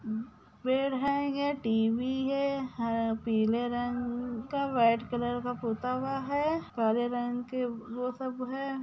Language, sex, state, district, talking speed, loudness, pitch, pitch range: Hindi, female, Chhattisgarh, Bilaspur, 135 wpm, -31 LUFS, 245 Hz, 230-270 Hz